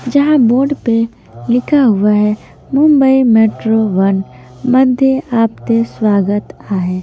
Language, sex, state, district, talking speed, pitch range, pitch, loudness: Hindi, female, Maharashtra, Mumbai Suburban, 120 wpm, 205-265 Hz, 230 Hz, -13 LUFS